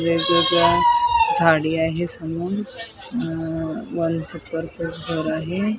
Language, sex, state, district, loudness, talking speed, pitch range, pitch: Marathi, female, Maharashtra, Mumbai Suburban, -21 LUFS, 85 wpm, 165-180 Hz, 170 Hz